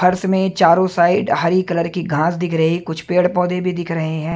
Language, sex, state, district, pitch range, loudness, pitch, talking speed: Hindi, male, Chhattisgarh, Raipur, 165-180 Hz, -17 LUFS, 175 Hz, 235 wpm